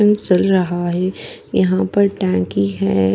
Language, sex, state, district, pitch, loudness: Hindi, female, Bihar, Patna, 175 Hz, -17 LUFS